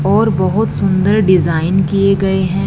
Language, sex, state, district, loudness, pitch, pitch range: Hindi, female, Punjab, Fazilka, -13 LUFS, 190 Hz, 185-195 Hz